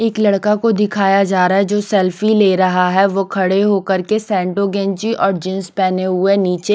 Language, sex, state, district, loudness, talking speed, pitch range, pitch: Hindi, female, Punjab, Pathankot, -15 LUFS, 195 wpm, 185-205 Hz, 195 Hz